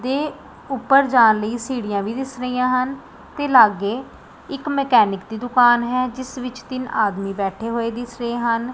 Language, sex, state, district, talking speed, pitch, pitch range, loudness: Punjabi, female, Punjab, Pathankot, 170 wpm, 245 Hz, 225-260 Hz, -20 LUFS